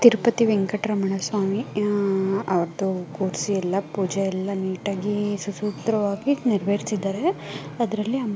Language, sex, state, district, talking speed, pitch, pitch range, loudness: Kannada, female, Karnataka, Mysore, 70 wpm, 200 Hz, 195-215 Hz, -24 LUFS